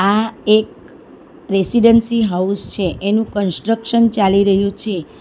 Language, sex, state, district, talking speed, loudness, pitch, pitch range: Gujarati, female, Gujarat, Valsad, 115 wpm, -16 LUFS, 210 Hz, 195-230 Hz